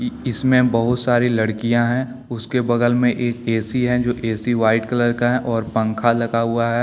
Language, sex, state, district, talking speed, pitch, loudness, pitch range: Hindi, male, Jharkhand, Deoghar, 175 wpm, 120 Hz, -19 LUFS, 115-125 Hz